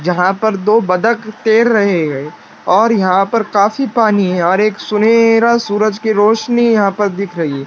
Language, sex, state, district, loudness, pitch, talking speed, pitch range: Hindi, male, Maharashtra, Washim, -13 LUFS, 215 Hz, 190 wpm, 190-225 Hz